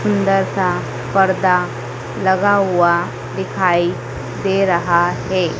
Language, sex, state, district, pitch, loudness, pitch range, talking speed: Hindi, female, Madhya Pradesh, Dhar, 185 Hz, -17 LUFS, 175-195 Hz, 95 wpm